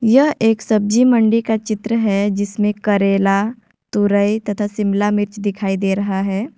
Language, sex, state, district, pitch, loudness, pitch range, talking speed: Hindi, female, Jharkhand, Ranchi, 210 Hz, -17 LUFS, 200-225 Hz, 155 wpm